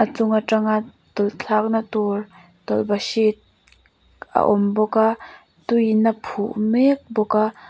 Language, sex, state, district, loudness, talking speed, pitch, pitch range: Mizo, female, Mizoram, Aizawl, -20 LUFS, 140 wpm, 215 Hz, 210-225 Hz